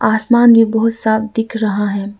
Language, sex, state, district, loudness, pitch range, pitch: Hindi, female, Arunachal Pradesh, Lower Dibang Valley, -14 LUFS, 210-225 Hz, 220 Hz